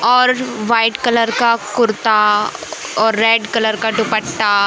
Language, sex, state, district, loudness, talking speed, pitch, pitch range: Hindi, male, Madhya Pradesh, Katni, -15 LUFS, 130 wpm, 225 Hz, 215-235 Hz